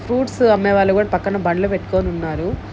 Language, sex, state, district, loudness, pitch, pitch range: Telugu, female, Andhra Pradesh, Guntur, -18 LUFS, 195 Hz, 175-200 Hz